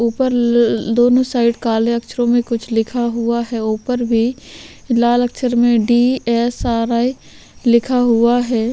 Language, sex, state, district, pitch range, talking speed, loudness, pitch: Hindi, female, Chhattisgarh, Korba, 235-245 Hz, 135 wpm, -16 LUFS, 235 Hz